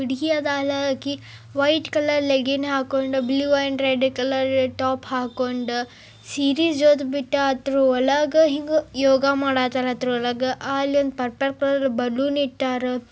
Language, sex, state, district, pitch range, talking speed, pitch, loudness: Kannada, female, Karnataka, Bijapur, 255-280 Hz, 120 wpm, 270 Hz, -21 LUFS